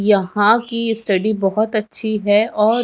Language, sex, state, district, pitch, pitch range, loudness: Hindi, female, Chhattisgarh, Raipur, 215 Hz, 205-225 Hz, -17 LUFS